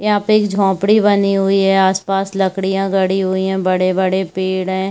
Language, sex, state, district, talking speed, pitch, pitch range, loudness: Hindi, female, Chhattisgarh, Bastar, 185 wpm, 195 Hz, 190-195 Hz, -15 LUFS